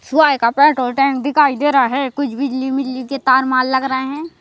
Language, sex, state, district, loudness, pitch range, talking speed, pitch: Hindi, male, Madhya Pradesh, Bhopal, -16 LUFS, 260-280 Hz, 190 wpm, 270 Hz